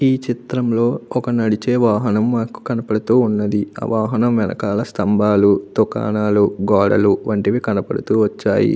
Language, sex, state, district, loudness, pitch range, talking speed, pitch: Telugu, male, Andhra Pradesh, Anantapur, -17 LUFS, 105-120 Hz, 125 wpm, 110 Hz